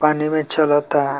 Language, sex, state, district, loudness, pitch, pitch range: Bhojpuri, male, Bihar, Muzaffarpur, -18 LUFS, 150 Hz, 145-155 Hz